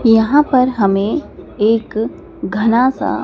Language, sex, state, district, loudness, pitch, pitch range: Hindi, male, Madhya Pradesh, Dhar, -15 LUFS, 225 Hz, 215-255 Hz